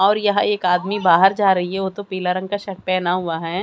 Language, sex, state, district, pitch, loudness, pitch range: Hindi, female, Haryana, Charkhi Dadri, 190 Hz, -19 LUFS, 180-200 Hz